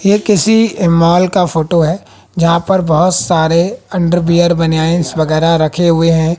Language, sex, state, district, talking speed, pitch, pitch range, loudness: Hindi, female, Haryana, Jhajjar, 150 wpm, 170 Hz, 165-180 Hz, -12 LUFS